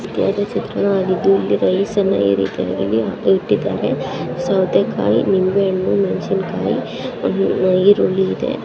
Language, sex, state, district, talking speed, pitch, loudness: Kannada, female, Karnataka, Bijapur, 95 wpm, 185 Hz, -17 LUFS